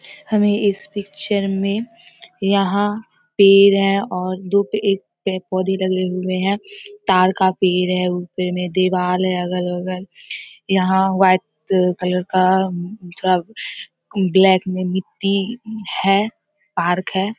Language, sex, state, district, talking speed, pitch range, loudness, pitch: Hindi, female, Bihar, Samastipur, 135 wpm, 185-200 Hz, -18 LUFS, 190 Hz